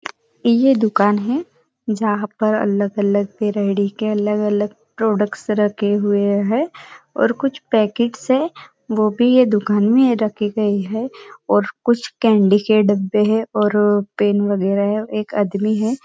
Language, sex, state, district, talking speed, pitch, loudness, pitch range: Hindi, female, Maharashtra, Nagpur, 150 wpm, 215 Hz, -18 LUFS, 205-235 Hz